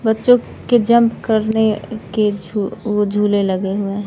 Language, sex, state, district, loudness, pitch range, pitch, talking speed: Hindi, male, Bihar, West Champaran, -17 LUFS, 205-220 Hz, 215 Hz, 135 wpm